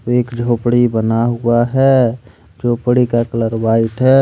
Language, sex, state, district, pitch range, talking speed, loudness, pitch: Hindi, male, Jharkhand, Deoghar, 115-125 Hz, 140 wpm, -15 LUFS, 120 Hz